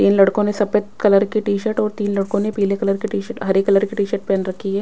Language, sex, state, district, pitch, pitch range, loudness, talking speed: Hindi, female, Bihar, West Champaran, 200 Hz, 195-210 Hz, -19 LUFS, 275 wpm